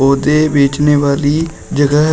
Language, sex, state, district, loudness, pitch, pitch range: Hindi, male, Uttar Pradesh, Shamli, -13 LUFS, 145 Hz, 140-150 Hz